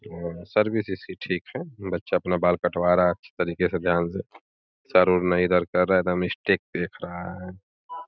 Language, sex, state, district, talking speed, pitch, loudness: Hindi, male, Uttar Pradesh, Gorakhpur, 195 wpm, 90 Hz, -24 LUFS